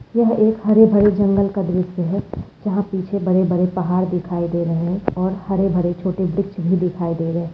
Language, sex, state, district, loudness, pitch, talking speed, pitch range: Hindi, female, Bihar, Saharsa, -19 LUFS, 185 Hz, 190 wpm, 175-200 Hz